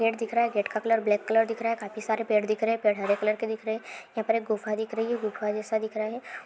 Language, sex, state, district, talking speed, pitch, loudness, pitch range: Hindi, female, Uttarakhand, Tehri Garhwal, 345 wpm, 220 Hz, -28 LUFS, 215-225 Hz